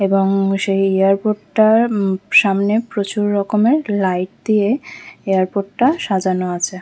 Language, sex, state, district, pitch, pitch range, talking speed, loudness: Bengali, female, West Bengal, Kolkata, 200 Hz, 195-215 Hz, 115 wpm, -16 LUFS